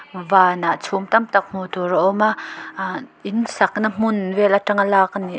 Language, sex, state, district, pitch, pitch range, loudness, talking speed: Mizo, female, Mizoram, Aizawl, 200 Hz, 190-210 Hz, -19 LUFS, 200 wpm